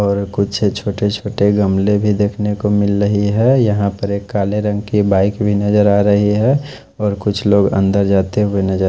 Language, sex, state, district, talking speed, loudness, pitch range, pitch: Hindi, male, Odisha, Khordha, 205 wpm, -15 LUFS, 100-105 Hz, 105 Hz